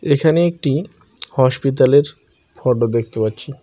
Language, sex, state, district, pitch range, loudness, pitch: Bengali, male, West Bengal, Cooch Behar, 125-150 Hz, -17 LUFS, 140 Hz